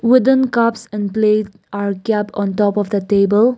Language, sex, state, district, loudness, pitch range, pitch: English, female, Nagaland, Kohima, -17 LUFS, 200-230 Hz, 210 Hz